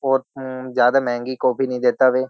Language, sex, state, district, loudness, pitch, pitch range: Hindi, male, Uttar Pradesh, Jyotiba Phule Nagar, -19 LUFS, 130 Hz, 125-135 Hz